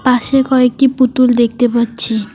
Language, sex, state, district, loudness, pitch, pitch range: Bengali, female, West Bengal, Alipurduar, -12 LUFS, 245 Hz, 235-255 Hz